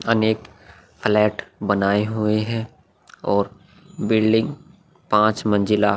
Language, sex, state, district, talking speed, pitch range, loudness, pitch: Hindi, male, Bihar, Vaishali, 100 wpm, 100-110 Hz, -21 LUFS, 105 Hz